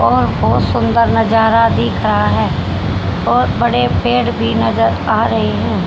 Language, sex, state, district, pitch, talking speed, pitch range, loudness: Hindi, female, Haryana, Rohtak, 115 Hz, 155 wpm, 110-125 Hz, -14 LUFS